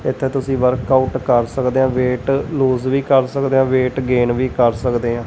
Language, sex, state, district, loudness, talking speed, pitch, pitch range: Punjabi, male, Punjab, Kapurthala, -17 LUFS, 215 wpm, 130 Hz, 125-135 Hz